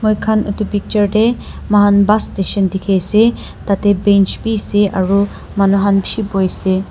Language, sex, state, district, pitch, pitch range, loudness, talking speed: Nagamese, female, Nagaland, Dimapur, 205 Hz, 195-210 Hz, -14 LUFS, 150 wpm